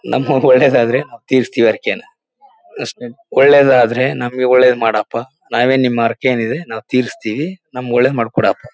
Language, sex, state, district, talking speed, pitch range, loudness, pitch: Kannada, male, Karnataka, Mysore, 130 wpm, 115-135 Hz, -14 LUFS, 125 Hz